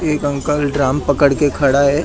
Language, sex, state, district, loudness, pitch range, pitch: Hindi, male, Maharashtra, Mumbai Suburban, -15 LUFS, 140-150 Hz, 145 Hz